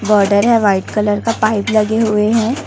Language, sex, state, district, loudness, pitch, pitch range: Hindi, female, Chhattisgarh, Raipur, -14 LUFS, 215 Hz, 205-225 Hz